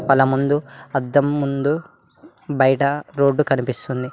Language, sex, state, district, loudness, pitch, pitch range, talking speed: Telugu, male, Telangana, Mahabubabad, -20 LUFS, 140 Hz, 135-145 Hz, 100 wpm